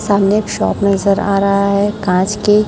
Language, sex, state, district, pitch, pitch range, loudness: Hindi, male, Chhattisgarh, Raipur, 200 Hz, 200-205 Hz, -14 LUFS